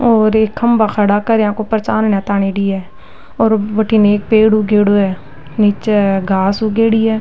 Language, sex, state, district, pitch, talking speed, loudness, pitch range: Rajasthani, female, Rajasthan, Nagaur, 210 Hz, 185 wpm, -13 LUFS, 200-220 Hz